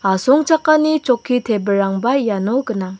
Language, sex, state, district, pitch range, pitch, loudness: Garo, female, Meghalaya, West Garo Hills, 200-275 Hz, 245 Hz, -16 LUFS